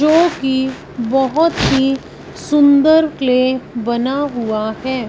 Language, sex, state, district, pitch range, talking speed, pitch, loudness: Hindi, female, Punjab, Fazilka, 250-295 Hz, 95 wpm, 265 Hz, -15 LUFS